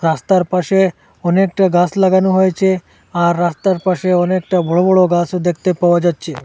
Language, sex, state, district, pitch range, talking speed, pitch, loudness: Bengali, male, Assam, Hailakandi, 175-190 Hz, 150 wpm, 180 Hz, -14 LUFS